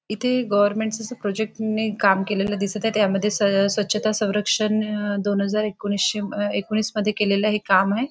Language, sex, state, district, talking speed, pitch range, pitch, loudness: Marathi, female, Maharashtra, Nagpur, 160 wpm, 200-215 Hz, 210 Hz, -22 LUFS